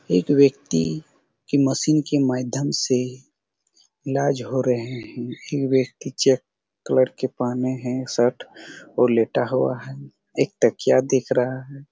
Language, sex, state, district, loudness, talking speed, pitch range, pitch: Hindi, male, Chhattisgarh, Raigarh, -22 LUFS, 140 wpm, 125-135 Hz, 130 Hz